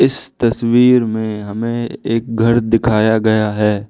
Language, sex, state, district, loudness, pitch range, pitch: Hindi, male, Arunachal Pradesh, Lower Dibang Valley, -15 LUFS, 110-120 Hz, 115 Hz